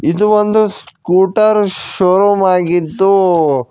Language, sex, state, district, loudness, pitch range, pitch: Kannada, male, Karnataka, Koppal, -12 LUFS, 175-210 Hz, 190 Hz